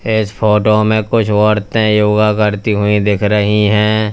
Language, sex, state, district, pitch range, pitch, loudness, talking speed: Hindi, male, Uttar Pradesh, Lalitpur, 105-110 Hz, 105 Hz, -13 LUFS, 160 wpm